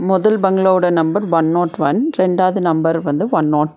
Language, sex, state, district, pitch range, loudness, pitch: Tamil, female, Tamil Nadu, Nilgiris, 160-190 Hz, -15 LUFS, 175 Hz